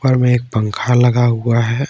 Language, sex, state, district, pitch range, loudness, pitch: Hindi, male, Jharkhand, Ranchi, 115-125 Hz, -15 LUFS, 120 Hz